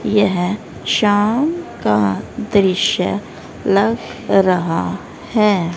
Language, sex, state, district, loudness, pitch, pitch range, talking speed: Hindi, female, Haryana, Rohtak, -17 LUFS, 200 Hz, 180-215 Hz, 75 wpm